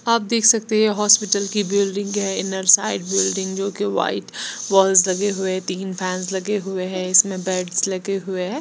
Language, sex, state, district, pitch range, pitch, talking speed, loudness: Hindi, female, Bihar, West Champaran, 190-205 Hz, 195 Hz, 180 wpm, -19 LUFS